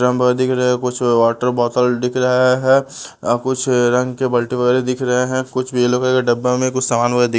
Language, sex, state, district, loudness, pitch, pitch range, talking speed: Hindi, male, Bihar, West Champaran, -16 LUFS, 125 Hz, 125-130 Hz, 220 wpm